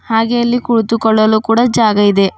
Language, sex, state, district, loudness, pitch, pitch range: Kannada, female, Karnataka, Bidar, -12 LUFS, 225 Hz, 215-235 Hz